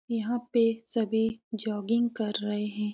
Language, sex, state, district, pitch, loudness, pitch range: Hindi, female, Uttar Pradesh, Etah, 225 Hz, -29 LUFS, 210-230 Hz